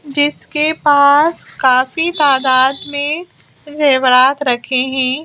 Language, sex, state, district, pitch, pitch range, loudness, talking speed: Hindi, female, Madhya Pradesh, Bhopal, 285 Hz, 260-300 Hz, -13 LUFS, 90 wpm